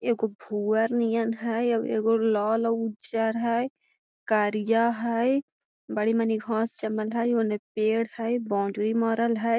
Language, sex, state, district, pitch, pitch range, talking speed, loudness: Magahi, female, Bihar, Gaya, 225 Hz, 220-230 Hz, 130 wpm, -26 LUFS